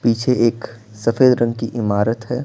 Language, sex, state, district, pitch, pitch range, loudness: Hindi, male, Bihar, Patna, 115 Hz, 110-120 Hz, -18 LUFS